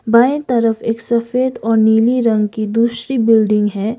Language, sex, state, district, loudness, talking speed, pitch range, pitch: Hindi, female, Sikkim, Gangtok, -15 LUFS, 165 wpm, 220-240 Hz, 230 Hz